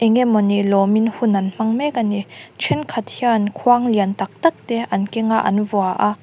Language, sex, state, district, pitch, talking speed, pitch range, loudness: Mizo, female, Mizoram, Aizawl, 215 Hz, 220 wpm, 200-235 Hz, -18 LUFS